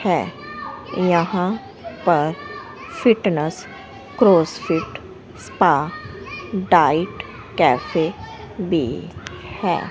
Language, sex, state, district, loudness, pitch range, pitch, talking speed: Hindi, female, Haryana, Rohtak, -20 LUFS, 170-210 Hz, 185 Hz, 60 wpm